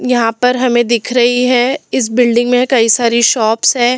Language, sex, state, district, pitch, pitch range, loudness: Hindi, female, Delhi, New Delhi, 245 Hz, 235-250 Hz, -12 LUFS